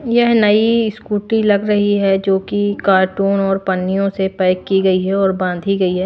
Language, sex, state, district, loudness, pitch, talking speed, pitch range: Hindi, female, Maharashtra, Washim, -15 LUFS, 195 Hz, 200 wpm, 190-205 Hz